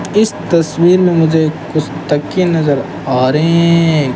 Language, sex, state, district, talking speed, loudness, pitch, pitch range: Hindi, male, Rajasthan, Bikaner, 145 wpm, -13 LUFS, 160 Hz, 150-170 Hz